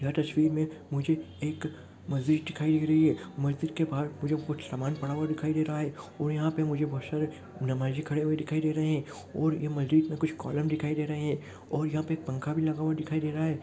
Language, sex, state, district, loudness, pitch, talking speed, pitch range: Hindi, male, Rajasthan, Churu, -30 LUFS, 155 Hz, 240 wpm, 150-155 Hz